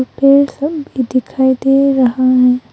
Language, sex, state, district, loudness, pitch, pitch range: Hindi, female, Arunachal Pradesh, Longding, -13 LUFS, 260 Hz, 255-275 Hz